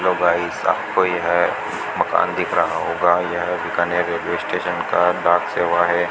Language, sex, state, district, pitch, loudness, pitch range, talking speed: Hindi, male, Rajasthan, Bikaner, 85 Hz, -19 LUFS, 85-90 Hz, 165 wpm